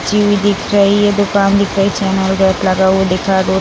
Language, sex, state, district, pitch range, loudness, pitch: Hindi, female, Bihar, Sitamarhi, 190-205 Hz, -13 LUFS, 195 Hz